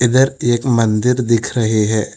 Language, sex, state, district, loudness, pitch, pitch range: Hindi, female, Telangana, Hyderabad, -15 LUFS, 120 Hz, 110-125 Hz